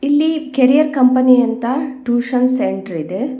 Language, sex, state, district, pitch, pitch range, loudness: Kannada, female, Karnataka, Bangalore, 255 Hz, 245-280 Hz, -15 LUFS